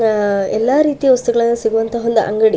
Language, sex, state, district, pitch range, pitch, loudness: Kannada, female, Karnataka, Shimoga, 220-240 Hz, 230 Hz, -15 LUFS